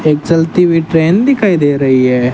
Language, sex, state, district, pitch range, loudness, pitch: Hindi, male, Rajasthan, Bikaner, 140-180 Hz, -11 LUFS, 160 Hz